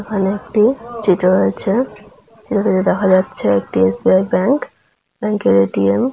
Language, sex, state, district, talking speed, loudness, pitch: Bengali, female, West Bengal, Jalpaiguri, 135 wpm, -16 LUFS, 195 Hz